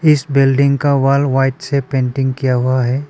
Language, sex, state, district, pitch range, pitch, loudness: Hindi, male, Arunachal Pradesh, Papum Pare, 130-140 Hz, 135 Hz, -15 LUFS